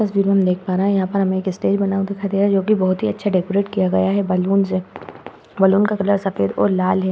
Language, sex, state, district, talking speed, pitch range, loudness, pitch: Hindi, female, Uttar Pradesh, Hamirpur, 295 wpm, 185-200 Hz, -18 LUFS, 195 Hz